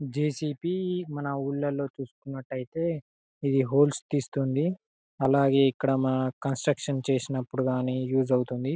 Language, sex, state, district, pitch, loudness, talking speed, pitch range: Telugu, male, Telangana, Karimnagar, 135 Hz, -28 LUFS, 115 wpm, 130-145 Hz